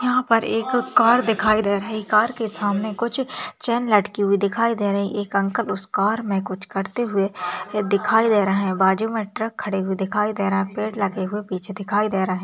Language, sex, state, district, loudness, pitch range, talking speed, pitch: Hindi, female, Rajasthan, Nagaur, -21 LUFS, 195-225 Hz, 210 wpm, 210 Hz